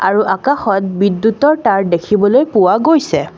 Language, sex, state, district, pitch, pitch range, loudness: Assamese, female, Assam, Kamrup Metropolitan, 210 Hz, 195-270 Hz, -13 LUFS